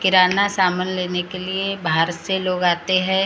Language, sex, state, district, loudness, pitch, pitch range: Hindi, female, Maharashtra, Gondia, -20 LUFS, 185 Hz, 180-190 Hz